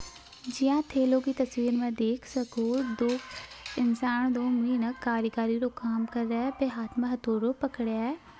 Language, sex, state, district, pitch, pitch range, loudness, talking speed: Hindi, female, Rajasthan, Nagaur, 245 Hz, 235-260 Hz, -29 LUFS, 155 wpm